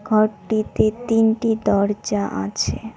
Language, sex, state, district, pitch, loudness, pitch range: Bengali, female, West Bengal, Cooch Behar, 215 Hz, -20 LUFS, 200-220 Hz